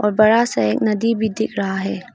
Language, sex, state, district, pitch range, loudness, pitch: Hindi, female, Arunachal Pradesh, Lower Dibang Valley, 195-220 Hz, -18 LUFS, 215 Hz